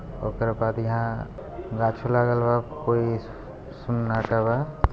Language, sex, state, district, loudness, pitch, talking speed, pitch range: Hindi, male, Bihar, Gopalganj, -25 LUFS, 115 Hz, 120 wpm, 115-120 Hz